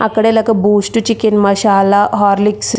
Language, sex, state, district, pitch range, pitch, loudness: Telugu, female, Andhra Pradesh, Krishna, 200-225 Hz, 210 Hz, -12 LUFS